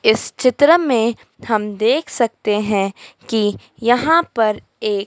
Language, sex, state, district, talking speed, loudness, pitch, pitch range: Hindi, female, Madhya Pradesh, Dhar, 130 wpm, -17 LUFS, 225 Hz, 210-255 Hz